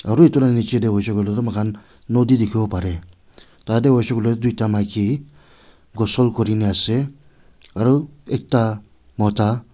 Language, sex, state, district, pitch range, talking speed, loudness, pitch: Nagamese, male, Nagaland, Kohima, 105-125 Hz, 140 wpm, -19 LUFS, 110 Hz